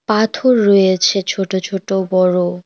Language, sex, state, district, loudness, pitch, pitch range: Bengali, female, West Bengal, Cooch Behar, -15 LUFS, 195 Hz, 185-200 Hz